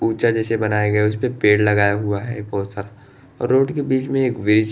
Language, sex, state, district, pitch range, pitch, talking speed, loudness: Hindi, male, Chhattisgarh, Bastar, 105-130 Hz, 110 Hz, 255 wpm, -19 LUFS